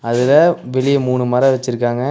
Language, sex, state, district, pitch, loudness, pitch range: Tamil, male, Tamil Nadu, Nilgiris, 125 Hz, -15 LUFS, 125-135 Hz